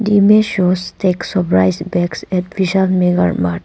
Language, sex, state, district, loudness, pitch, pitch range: English, female, Arunachal Pradesh, Papum Pare, -15 LUFS, 180 Hz, 175-190 Hz